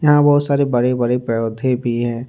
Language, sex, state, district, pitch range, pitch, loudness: Hindi, male, Jharkhand, Ranchi, 120-140 Hz, 125 Hz, -17 LUFS